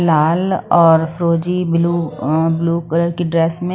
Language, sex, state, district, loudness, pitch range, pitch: Hindi, female, Haryana, Rohtak, -16 LUFS, 165-175 Hz, 170 Hz